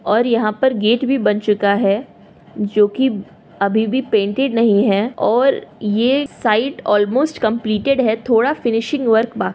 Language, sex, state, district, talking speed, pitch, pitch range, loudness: Hindi, female, Uttar Pradesh, Jyotiba Phule Nagar, 155 wpm, 225 Hz, 210-255 Hz, -17 LUFS